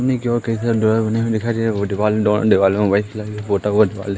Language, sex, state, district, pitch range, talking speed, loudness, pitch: Hindi, male, Madhya Pradesh, Katni, 100-115 Hz, 130 wpm, -18 LUFS, 105 Hz